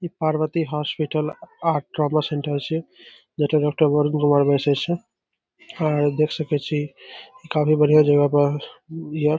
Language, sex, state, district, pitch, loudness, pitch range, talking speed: Maithili, male, Bihar, Saharsa, 150 Hz, -21 LUFS, 145-155 Hz, 110 wpm